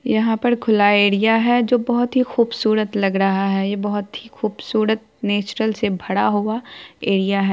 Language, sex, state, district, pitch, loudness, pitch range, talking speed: Hindi, female, Bihar, Araria, 215 Hz, -19 LUFS, 205-230 Hz, 185 wpm